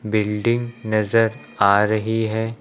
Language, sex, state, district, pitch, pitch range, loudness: Hindi, male, Uttar Pradesh, Lucknow, 110 Hz, 105-115 Hz, -20 LUFS